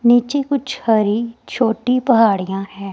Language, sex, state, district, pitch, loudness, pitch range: Hindi, female, Himachal Pradesh, Shimla, 235 Hz, -17 LUFS, 210-250 Hz